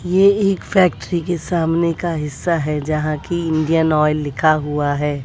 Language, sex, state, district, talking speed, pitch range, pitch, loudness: Hindi, female, Bihar, West Champaran, 170 wpm, 150-175 Hz, 160 Hz, -18 LUFS